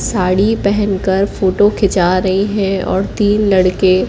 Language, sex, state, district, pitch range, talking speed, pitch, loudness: Hindi, female, Madhya Pradesh, Katni, 185-205 Hz, 130 wpm, 195 Hz, -14 LUFS